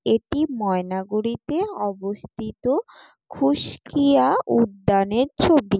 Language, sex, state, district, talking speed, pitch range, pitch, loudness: Bengali, female, West Bengal, Jalpaiguri, 60 wpm, 200-285 Hz, 225 Hz, -22 LUFS